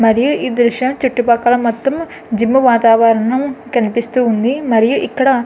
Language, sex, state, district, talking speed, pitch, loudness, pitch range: Telugu, female, Andhra Pradesh, Anantapur, 120 wpm, 240 Hz, -14 LUFS, 230-260 Hz